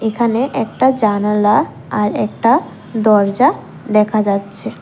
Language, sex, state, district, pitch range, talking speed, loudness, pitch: Bengali, female, Tripura, West Tripura, 210-235 Hz, 100 wpm, -15 LUFS, 215 Hz